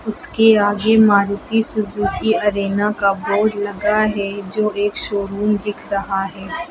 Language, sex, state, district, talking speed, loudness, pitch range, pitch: Hindi, female, Uttar Pradesh, Lucknow, 135 wpm, -18 LUFS, 200-215 Hz, 205 Hz